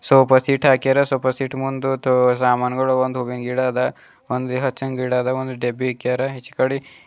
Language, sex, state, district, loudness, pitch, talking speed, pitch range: Kannada, male, Karnataka, Bidar, -20 LUFS, 130 Hz, 160 wpm, 125-135 Hz